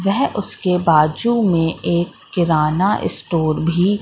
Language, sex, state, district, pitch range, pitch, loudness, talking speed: Hindi, female, Madhya Pradesh, Katni, 165-195 Hz, 175 Hz, -17 LUFS, 120 wpm